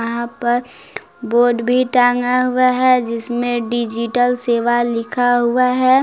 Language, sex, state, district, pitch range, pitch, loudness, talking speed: Hindi, female, Jharkhand, Palamu, 235-250 Hz, 245 Hz, -16 LUFS, 130 wpm